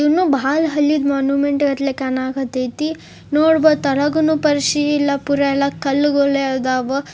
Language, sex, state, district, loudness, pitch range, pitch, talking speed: Kannada, female, Karnataka, Bijapur, -17 LUFS, 275-295 Hz, 280 Hz, 110 wpm